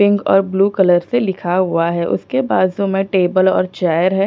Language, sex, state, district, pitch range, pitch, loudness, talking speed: Hindi, female, Punjab, Pathankot, 180-195 Hz, 190 Hz, -16 LUFS, 210 wpm